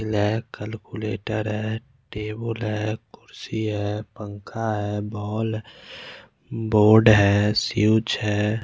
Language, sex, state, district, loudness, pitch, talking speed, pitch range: Hindi, male, Bihar, West Champaran, -23 LUFS, 110 Hz, 95 wpm, 105-110 Hz